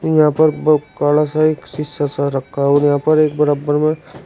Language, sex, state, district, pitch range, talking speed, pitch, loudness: Hindi, male, Uttar Pradesh, Shamli, 145-155 Hz, 225 wpm, 150 Hz, -16 LUFS